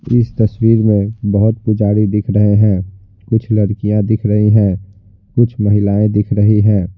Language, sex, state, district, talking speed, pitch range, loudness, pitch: Hindi, male, Bihar, Patna, 155 wpm, 100-110 Hz, -13 LUFS, 105 Hz